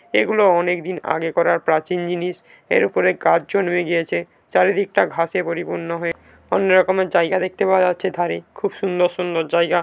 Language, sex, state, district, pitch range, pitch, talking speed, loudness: Bengali, male, West Bengal, Paschim Medinipur, 170-185 Hz, 175 Hz, 175 wpm, -19 LUFS